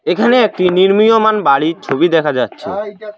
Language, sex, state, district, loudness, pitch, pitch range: Bengali, male, West Bengal, Alipurduar, -13 LUFS, 205 Hz, 180-220 Hz